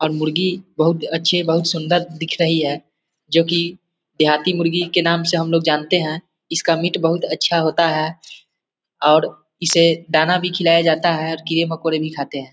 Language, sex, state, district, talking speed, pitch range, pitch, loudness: Hindi, male, Bihar, East Champaran, 180 wpm, 155-170 Hz, 165 Hz, -18 LUFS